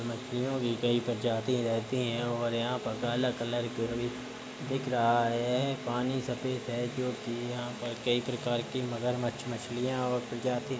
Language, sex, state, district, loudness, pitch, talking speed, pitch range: Hindi, male, Uttar Pradesh, Budaun, -32 LUFS, 120 Hz, 160 wpm, 120-125 Hz